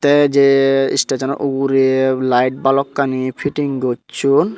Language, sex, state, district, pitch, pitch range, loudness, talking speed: Chakma, male, Tripura, Dhalai, 135 Hz, 130-140 Hz, -16 LUFS, 120 wpm